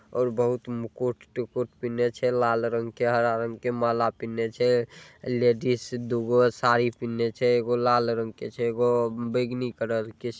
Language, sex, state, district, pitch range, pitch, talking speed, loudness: Maithili, male, Bihar, Saharsa, 115-125 Hz, 120 Hz, 165 wpm, -26 LUFS